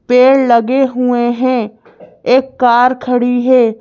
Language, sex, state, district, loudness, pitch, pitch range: Hindi, female, Madhya Pradesh, Bhopal, -12 LUFS, 250 Hz, 240-255 Hz